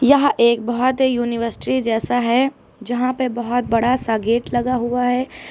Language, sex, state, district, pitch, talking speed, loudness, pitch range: Hindi, female, Uttar Pradesh, Lucknow, 245 Hz, 175 wpm, -19 LUFS, 235-255 Hz